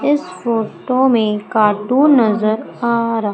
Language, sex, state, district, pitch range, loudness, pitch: Hindi, female, Madhya Pradesh, Umaria, 215-255 Hz, -15 LUFS, 230 Hz